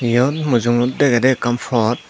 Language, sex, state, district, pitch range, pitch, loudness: Chakma, male, Tripura, Dhalai, 120-130 Hz, 120 Hz, -17 LUFS